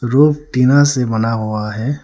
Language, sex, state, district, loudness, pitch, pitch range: Hindi, male, Arunachal Pradesh, Lower Dibang Valley, -15 LUFS, 125 Hz, 110-140 Hz